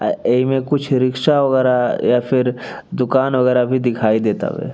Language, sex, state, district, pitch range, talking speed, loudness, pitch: Bhojpuri, male, Bihar, East Champaran, 125-130 Hz, 175 wpm, -16 LUFS, 125 Hz